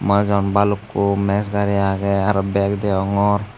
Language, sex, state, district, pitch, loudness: Chakma, male, Tripura, Unakoti, 100 Hz, -19 LUFS